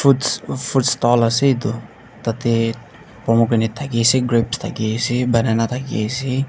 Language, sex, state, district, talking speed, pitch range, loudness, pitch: Nagamese, male, Nagaland, Dimapur, 110 wpm, 115-130 Hz, -18 LUFS, 120 Hz